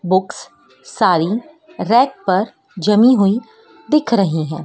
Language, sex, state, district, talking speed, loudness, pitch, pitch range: Hindi, female, Madhya Pradesh, Dhar, 115 wpm, -16 LUFS, 215 Hz, 185-255 Hz